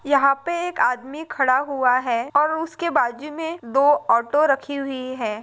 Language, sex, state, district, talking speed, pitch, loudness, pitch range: Hindi, female, Maharashtra, Pune, 175 wpm, 275 Hz, -21 LUFS, 255-305 Hz